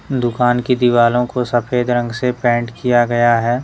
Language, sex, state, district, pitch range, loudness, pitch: Hindi, male, Jharkhand, Deoghar, 120-125 Hz, -16 LUFS, 120 Hz